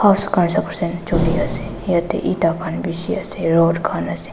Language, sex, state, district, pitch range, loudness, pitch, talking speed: Nagamese, female, Nagaland, Dimapur, 165-200 Hz, -19 LUFS, 170 Hz, 110 wpm